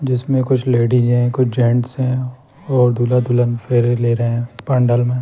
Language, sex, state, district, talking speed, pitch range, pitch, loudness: Hindi, male, Chandigarh, Chandigarh, 185 wpm, 120-130 Hz, 125 Hz, -16 LUFS